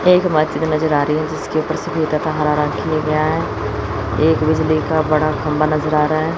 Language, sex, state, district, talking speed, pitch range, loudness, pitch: Hindi, female, Chandigarh, Chandigarh, 85 wpm, 150-155 Hz, -17 LUFS, 155 Hz